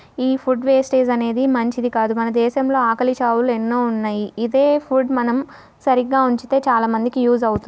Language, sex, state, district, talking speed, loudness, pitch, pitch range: Telugu, female, Andhra Pradesh, Guntur, 165 wpm, -18 LUFS, 245 Hz, 235-265 Hz